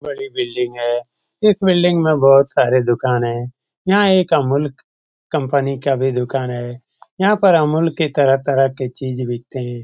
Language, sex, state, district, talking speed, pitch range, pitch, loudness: Hindi, male, Bihar, Lakhisarai, 165 wpm, 125-165 Hz, 135 Hz, -17 LUFS